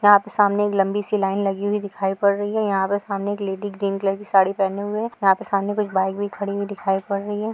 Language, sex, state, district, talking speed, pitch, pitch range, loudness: Hindi, female, Chhattisgarh, Kabirdham, 270 wpm, 200 Hz, 195-205 Hz, -22 LUFS